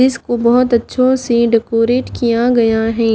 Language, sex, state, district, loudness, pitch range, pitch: Hindi, female, Haryana, Jhajjar, -14 LUFS, 230-250 Hz, 235 Hz